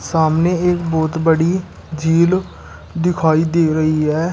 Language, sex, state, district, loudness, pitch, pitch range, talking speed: Hindi, male, Uttar Pradesh, Shamli, -16 LUFS, 165 Hz, 160-175 Hz, 125 wpm